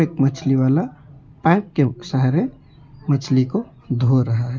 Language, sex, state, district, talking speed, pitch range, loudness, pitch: Hindi, male, West Bengal, Alipurduar, 130 wpm, 130-140 Hz, -19 LUFS, 135 Hz